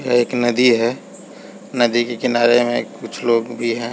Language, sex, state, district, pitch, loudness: Hindi, male, Chhattisgarh, Balrampur, 120 Hz, -17 LUFS